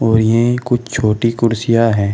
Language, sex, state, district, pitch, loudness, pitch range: Hindi, male, Uttar Pradesh, Shamli, 115 Hz, -15 LUFS, 110-120 Hz